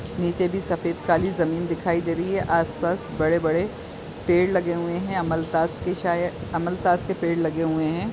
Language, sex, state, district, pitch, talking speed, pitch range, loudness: Hindi, female, Chhattisgarh, Bilaspur, 170 Hz, 200 wpm, 165-180 Hz, -24 LUFS